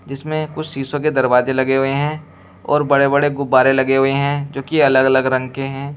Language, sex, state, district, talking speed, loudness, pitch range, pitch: Hindi, male, Uttar Pradesh, Shamli, 220 wpm, -16 LUFS, 135-145 Hz, 135 Hz